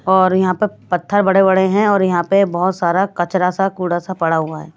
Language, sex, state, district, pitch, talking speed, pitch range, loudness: Hindi, female, Maharashtra, Washim, 185 Hz, 225 wpm, 175-195 Hz, -16 LUFS